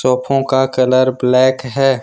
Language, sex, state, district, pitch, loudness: Hindi, male, Jharkhand, Ranchi, 130 Hz, -14 LUFS